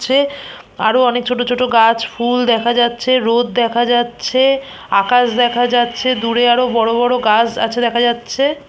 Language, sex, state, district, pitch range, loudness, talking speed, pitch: Bengali, female, West Bengal, Purulia, 235-250 Hz, -14 LUFS, 160 wpm, 240 Hz